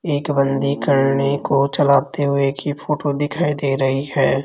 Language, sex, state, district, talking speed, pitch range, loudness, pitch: Hindi, male, Rajasthan, Jaipur, 160 wpm, 135-145 Hz, -18 LUFS, 140 Hz